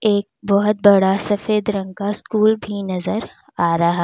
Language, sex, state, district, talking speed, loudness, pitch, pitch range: Hindi, female, Uttar Pradesh, Lalitpur, 165 wpm, -18 LUFS, 205 Hz, 190-210 Hz